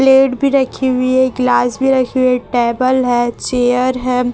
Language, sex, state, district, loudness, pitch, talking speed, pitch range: Hindi, female, Chhattisgarh, Raipur, -14 LUFS, 255 Hz, 195 wpm, 245-260 Hz